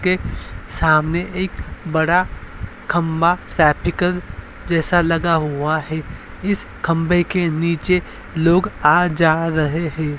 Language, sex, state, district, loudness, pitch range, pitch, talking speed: Hindi, male, Uttar Pradesh, Varanasi, -18 LUFS, 155-175 Hz, 165 Hz, 105 wpm